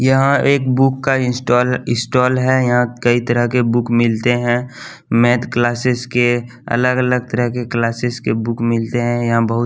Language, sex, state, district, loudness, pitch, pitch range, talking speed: Hindi, male, Bihar, West Champaran, -16 LUFS, 120 Hz, 120-125 Hz, 180 wpm